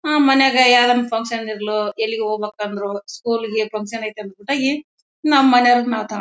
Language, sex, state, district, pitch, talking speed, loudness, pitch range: Kannada, female, Karnataka, Bellary, 225 Hz, 155 wpm, -18 LUFS, 215-250 Hz